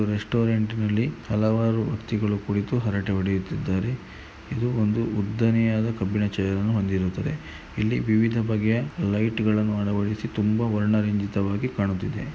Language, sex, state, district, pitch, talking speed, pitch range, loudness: Kannada, male, Karnataka, Mysore, 105 Hz, 100 wpm, 100-115 Hz, -25 LUFS